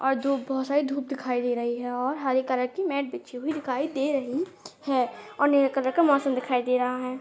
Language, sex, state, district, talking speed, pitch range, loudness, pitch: Hindi, female, Jharkhand, Sahebganj, 235 wpm, 255-280 Hz, -26 LUFS, 265 Hz